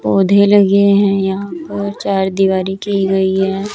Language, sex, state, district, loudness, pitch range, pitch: Hindi, female, Chandigarh, Chandigarh, -14 LUFS, 190-200 Hz, 195 Hz